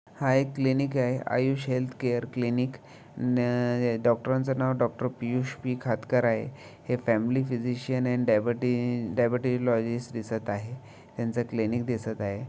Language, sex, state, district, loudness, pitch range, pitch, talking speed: Marathi, male, Maharashtra, Aurangabad, -28 LUFS, 120-130 Hz, 125 Hz, 140 wpm